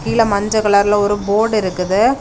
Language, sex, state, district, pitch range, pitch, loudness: Tamil, female, Tamil Nadu, Kanyakumari, 200-215 Hz, 205 Hz, -15 LUFS